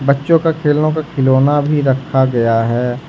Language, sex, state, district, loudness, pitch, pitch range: Hindi, male, Jharkhand, Ranchi, -14 LUFS, 140 Hz, 130-150 Hz